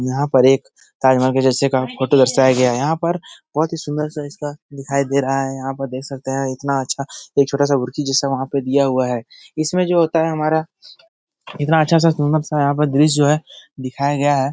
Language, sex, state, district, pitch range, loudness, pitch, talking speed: Hindi, male, Bihar, Jahanabad, 135-150 Hz, -18 LUFS, 140 Hz, 245 wpm